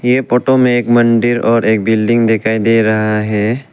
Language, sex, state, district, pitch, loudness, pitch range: Hindi, male, Arunachal Pradesh, Lower Dibang Valley, 115 Hz, -12 LUFS, 110-120 Hz